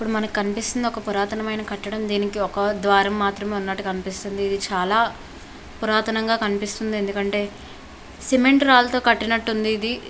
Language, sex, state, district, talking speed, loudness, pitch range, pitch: Telugu, female, Andhra Pradesh, Visakhapatnam, 155 wpm, -22 LUFS, 200-225 Hz, 210 Hz